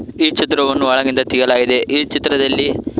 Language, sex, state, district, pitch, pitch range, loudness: Kannada, male, Karnataka, Koppal, 135 Hz, 130-145 Hz, -15 LUFS